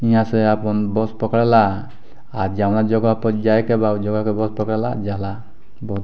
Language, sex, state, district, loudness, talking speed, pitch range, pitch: Bhojpuri, male, Bihar, Muzaffarpur, -19 LUFS, 190 wpm, 105-110 Hz, 110 Hz